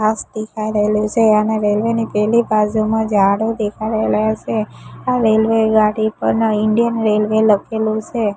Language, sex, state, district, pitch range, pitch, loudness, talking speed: Gujarati, female, Gujarat, Gandhinagar, 210-220 Hz, 215 Hz, -16 LUFS, 145 wpm